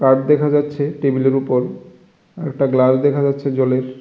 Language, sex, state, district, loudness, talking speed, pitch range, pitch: Bengali, male, Tripura, West Tripura, -17 LUFS, 165 wpm, 130-145 Hz, 135 Hz